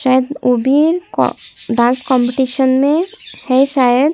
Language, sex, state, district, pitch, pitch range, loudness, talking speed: Hindi, female, Chhattisgarh, Kabirdham, 265 Hz, 255-290 Hz, -14 LUFS, 145 wpm